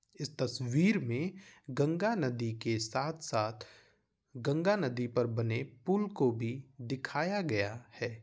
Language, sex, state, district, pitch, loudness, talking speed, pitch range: Hindi, male, Bihar, Vaishali, 130 Hz, -34 LUFS, 125 wpm, 120-160 Hz